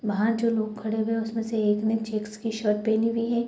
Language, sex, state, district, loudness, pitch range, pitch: Hindi, female, Bihar, Sitamarhi, -26 LUFS, 215-225 Hz, 220 Hz